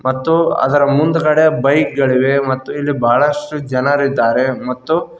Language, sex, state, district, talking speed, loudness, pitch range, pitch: Kannada, male, Karnataka, Koppal, 105 wpm, -14 LUFS, 130-150 Hz, 140 Hz